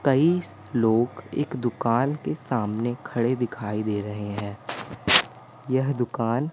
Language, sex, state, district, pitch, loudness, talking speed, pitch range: Hindi, male, Madhya Pradesh, Umaria, 120 Hz, -24 LUFS, 120 wpm, 110-130 Hz